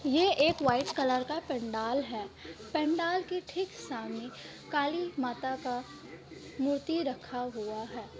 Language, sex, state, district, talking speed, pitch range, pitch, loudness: Hindi, female, Bihar, Kishanganj, 130 wpm, 245-315 Hz, 270 Hz, -32 LUFS